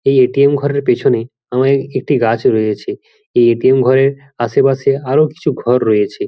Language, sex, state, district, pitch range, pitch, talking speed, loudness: Bengali, male, West Bengal, Jhargram, 120-140 Hz, 135 Hz, 155 wpm, -14 LUFS